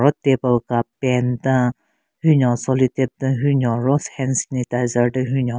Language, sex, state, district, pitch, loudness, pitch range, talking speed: Rengma, female, Nagaland, Kohima, 130 Hz, -19 LUFS, 125-135 Hz, 170 wpm